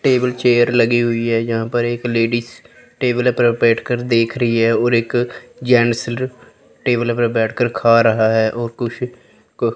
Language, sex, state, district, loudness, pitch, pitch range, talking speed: Hindi, female, Chandigarh, Chandigarh, -17 LUFS, 120 Hz, 115-120 Hz, 170 wpm